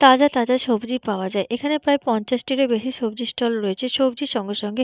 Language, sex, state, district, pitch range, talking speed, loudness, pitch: Bengali, female, West Bengal, Purulia, 230-265 Hz, 185 wpm, -21 LUFS, 245 Hz